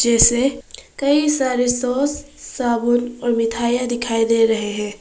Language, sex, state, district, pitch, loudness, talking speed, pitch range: Hindi, female, Arunachal Pradesh, Papum Pare, 240 Hz, -18 LUFS, 130 wpm, 230-255 Hz